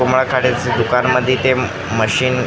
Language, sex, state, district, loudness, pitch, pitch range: Marathi, male, Maharashtra, Gondia, -16 LUFS, 125 Hz, 120-130 Hz